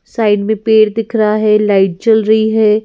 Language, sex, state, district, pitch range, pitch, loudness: Hindi, female, Madhya Pradesh, Bhopal, 210-220 Hz, 215 Hz, -12 LUFS